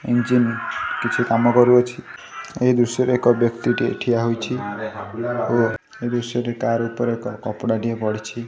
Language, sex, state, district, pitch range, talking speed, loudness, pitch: Odia, male, Odisha, Khordha, 115-120 Hz, 140 wpm, -20 LUFS, 120 Hz